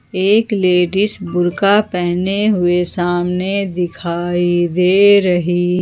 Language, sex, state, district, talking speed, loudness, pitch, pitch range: Hindi, female, Jharkhand, Ranchi, 95 wpm, -15 LUFS, 180 Hz, 175-195 Hz